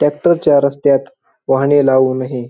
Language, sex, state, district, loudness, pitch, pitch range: Marathi, male, Maharashtra, Pune, -14 LUFS, 140 Hz, 130-145 Hz